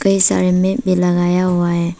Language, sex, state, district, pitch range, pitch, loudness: Hindi, female, Arunachal Pradesh, Papum Pare, 175-190 Hz, 180 Hz, -15 LUFS